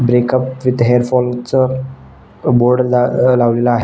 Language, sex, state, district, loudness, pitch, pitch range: Marathi, male, Maharashtra, Nagpur, -14 LUFS, 125 Hz, 120-130 Hz